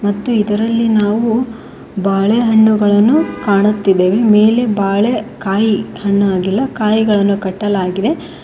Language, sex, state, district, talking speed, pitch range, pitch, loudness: Kannada, female, Karnataka, Koppal, 90 wpm, 200-225 Hz, 210 Hz, -13 LUFS